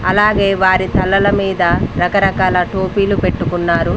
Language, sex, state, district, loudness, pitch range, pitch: Telugu, female, Telangana, Mahabubabad, -14 LUFS, 175-195 Hz, 190 Hz